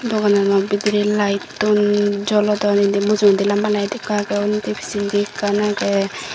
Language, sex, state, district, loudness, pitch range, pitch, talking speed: Chakma, female, Tripura, Dhalai, -18 LUFS, 200-210 Hz, 205 Hz, 130 wpm